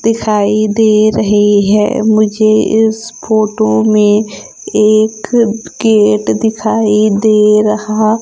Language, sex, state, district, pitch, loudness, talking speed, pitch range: Hindi, female, Madhya Pradesh, Umaria, 215 Hz, -11 LUFS, 95 wpm, 210-220 Hz